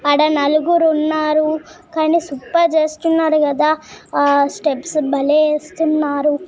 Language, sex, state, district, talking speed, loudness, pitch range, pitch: Telugu, female, Telangana, Nalgonda, 110 wpm, -16 LUFS, 290-320 Hz, 310 Hz